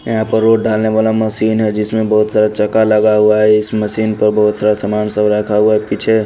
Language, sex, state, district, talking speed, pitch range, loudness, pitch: Hindi, male, Haryana, Rohtak, 240 wpm, 105-110 Hz, -13 LUFS, 105 Hz